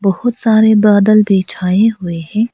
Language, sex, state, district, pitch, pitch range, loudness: Hindi, female, Arunachal Pradesh, Lower Dibang Valley, 210 Hz, 190-220 Hz, -12 LUFS